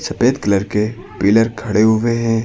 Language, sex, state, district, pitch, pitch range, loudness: Hindi, male, Uttar Pradesh, Lucknow, 110 Hz, 105-115 Hz, -16 LUFS